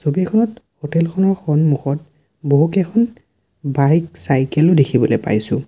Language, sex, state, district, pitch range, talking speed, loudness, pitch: Assamese, male, Assam, Sonitpur, 145-185 Hz, 85 wpm, -17 LUFS, 155 Hz